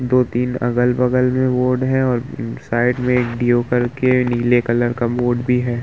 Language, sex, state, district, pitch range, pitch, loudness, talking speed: Hindi, male, Uttar Pradesh, Muzaffarnagar, 120-125 Hz, 125 Hz, -18 LUFS, 165 wpm